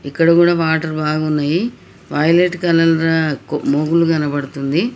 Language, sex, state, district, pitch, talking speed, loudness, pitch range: Telugu, male, Telangana, Nalgonda, 160 Hz, 110 wpm, -16 LUFS, 145-165 Hz